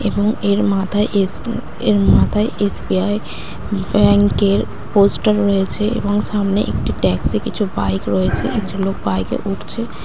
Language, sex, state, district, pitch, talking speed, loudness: Bengali, female, West Bengal, Dakshin Dinajpur, 200 Hz, 155 wpm, -17 LUFS